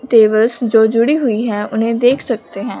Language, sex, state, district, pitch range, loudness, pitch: Hindi, male, Punjab, Fazilka, 220-240 Hz, -14 LUFS, 230 Hz